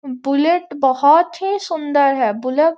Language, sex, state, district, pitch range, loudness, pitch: Hindi, female, Bihar, Gopalganj, 275-335 Hz, -16 LUFS, 290 Hz